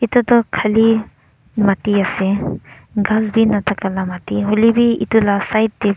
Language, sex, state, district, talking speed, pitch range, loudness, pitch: Nagamese, male, Nagaland, Dimapur, 170 wpm, 200-225 Hz, -16 LUFS, 215 Hz